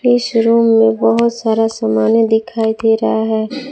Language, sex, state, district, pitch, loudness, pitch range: Hindi, female, Jharkhand, Palamu, 225 Hz, -14 LUFS, 220-230 Hz